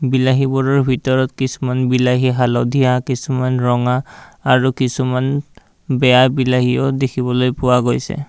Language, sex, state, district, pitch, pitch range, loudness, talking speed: Assamese, male, Assam, Kamrup Metropolitan, 130 Hz, 125-135 Hz, -16 LUFS, 100 wpm